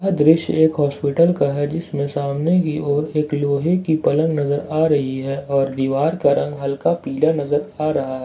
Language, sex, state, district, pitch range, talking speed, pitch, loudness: Hindi, male, Jharkhand, Ranchi, 140-160 Hz, 195 wpm, 150 Hz, -19 LUFS